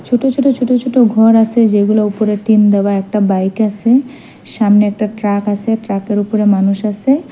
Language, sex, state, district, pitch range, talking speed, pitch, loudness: Bengali, female, Assam, Hailakandi, 205-230 Hz, 180 wpm, 215 Hz, -13 LUFS